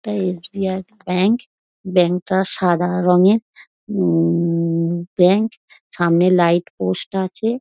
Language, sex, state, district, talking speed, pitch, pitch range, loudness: Bengali, female, West Bengal, Dakshin Dinajpur, 100 wpm, 180 Hz, 175-195 Hz, -18 LUFS